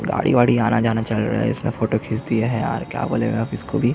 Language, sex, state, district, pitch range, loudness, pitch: Hindi, male, Chhattisgarh, Jashpur, 110-120 Hz, -20 LUFS, 115 Hz